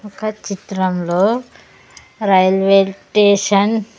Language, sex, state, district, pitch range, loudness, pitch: Telugu, female, Andhra Pradesh, Sri Satya Sai, 190-210 Hz, -15 LUFS, 200 Hz